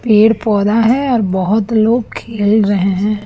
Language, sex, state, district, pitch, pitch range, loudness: Hindi, female, Chhattisgarh, Raipur, 215 Hz, 205-225 Hz, -13 LUFS